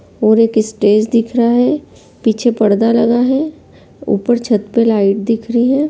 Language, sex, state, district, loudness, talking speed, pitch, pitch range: Hindi, female, Bihar, Lakhisarai, -14 LUFS, 195 wpm, 230 Hz, 220-245 Hz